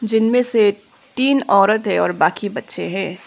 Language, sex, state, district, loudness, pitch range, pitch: Hindi, female, Arunachal Pradesh, Papum Pare, -17 LUFS, 195-230 Hz, 210 Hz